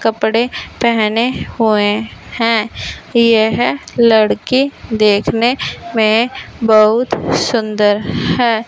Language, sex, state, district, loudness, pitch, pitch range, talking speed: Hindi, female, Punjab, Fazilka, -14 LUFS, 225 Hz, 215-235 Hz, 75 wpm